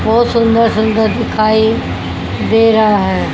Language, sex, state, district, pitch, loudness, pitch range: Hindi, female, Haryana, Jhajjar, 220 Hz, -12 LUFS, 195-225 Hz